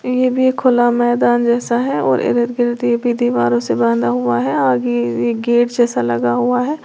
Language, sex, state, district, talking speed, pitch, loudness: Hindi, female, Uttar Pradesh, Lalitpur, 185 wpm, 240 Hz, -16 LUFS